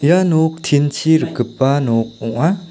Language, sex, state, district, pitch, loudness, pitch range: Garo, male, Meghalaya, South Garo Hills, 145 Hz, -16 LUFS, 120-160 Hz